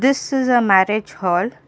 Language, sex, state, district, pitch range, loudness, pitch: English, female, Karnataka, Bangalore, 190-255 Hz, -17 LUFS, 220 Hz